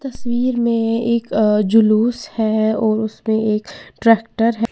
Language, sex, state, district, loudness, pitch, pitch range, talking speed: Hindi, female, Uttar Pradesh, Lalitpur, -17 LUFS, 225 Hz, 220-235 Hz, 140 wpm